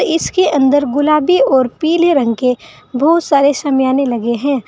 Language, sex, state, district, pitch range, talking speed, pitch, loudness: Hindi, female, Uttar Pradesh, Saharanpur, 260-320 Hz, 155 wpm, 280 Hz, -13 LUFS